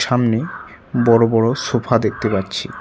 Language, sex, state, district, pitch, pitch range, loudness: Bengali, male, West Bengal, Cooch Behar, 115 Hz, 115-120 Hz, -17 LUFS